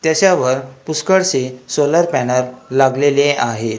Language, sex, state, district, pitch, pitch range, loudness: Marathi, male, Maharashtra, Gondia, 135 Hz, 130-160 Hz, -15 LUFS